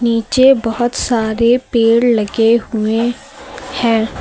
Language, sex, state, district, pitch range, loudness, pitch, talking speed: Hindi, female, Uttar Pradesh, Lucknow, 225-240 Hz, -14 LUFS, 230 Hz, 100 wpm